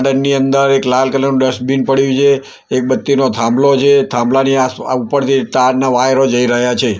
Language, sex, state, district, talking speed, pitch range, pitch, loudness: Gujarati, male, Gujarat, Gandhinagar, 190 wpm, 130-135 Hz, 135 Hz, -13 LUFS